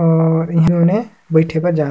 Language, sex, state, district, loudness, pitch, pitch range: Surgujia, male, Chhattisgarh, Sarguja, -15 LUFS, 165 Hz, 160-175 Hz